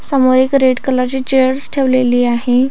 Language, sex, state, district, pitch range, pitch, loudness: Marathi, female, Maharashtra, Aurangabad, 255-265 Hz, 260 Hz, -13 LUFS